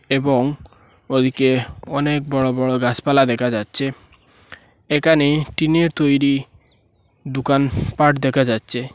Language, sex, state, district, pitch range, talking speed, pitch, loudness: Bengali, male, Assam, Hailakandi, 125-145 Hz, 100 wpm, 135 Hz, -18 LUFS